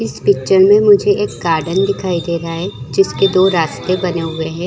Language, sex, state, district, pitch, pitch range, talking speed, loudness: Chhattisgarhi, female, Chhattisgarh, Jashpur, 185 Hz, 165-195 Hz, 220 wpm, -14 LUFS